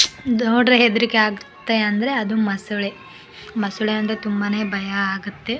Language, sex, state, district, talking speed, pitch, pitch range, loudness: Kannada, female, Karnataka, Bellary, 130 wpm, 215 Hz, 200-225 Hz, -20 LUFS